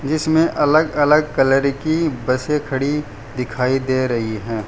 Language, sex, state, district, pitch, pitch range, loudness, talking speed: Hindi, male, Gujarat, Valsad, 135 Hz, 125-150 Hz, -18 LUFS, 140 wpm